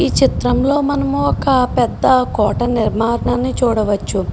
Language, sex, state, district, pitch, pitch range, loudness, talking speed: Telugu, female, Telangana, Karimnagar, 245 Hz, 220-275 Hz, -16 LUFS, 140 wpm